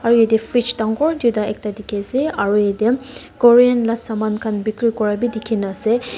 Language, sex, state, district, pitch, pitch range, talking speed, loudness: Nagamese, female, Nagaland, Dimapur, 225 Hz, 210-240 Hz, 185 wpm, -18 LUFS